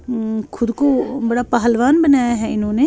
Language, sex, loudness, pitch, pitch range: Urdu, female, -17 LUFS, 240 Hz, 230-265 Hz